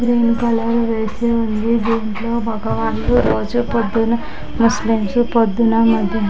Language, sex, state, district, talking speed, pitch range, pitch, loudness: Telugu, female, Andhra Pradesh, Chittoor, 105 wpm, 215-235 Hz, 225 Hz, -17 LUFS